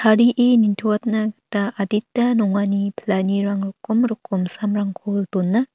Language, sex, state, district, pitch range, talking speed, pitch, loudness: Garo, female, Meghalaya, North Garo Hills, 200-225 Hz, 95 wpm, 210 Hz, -20 LUFS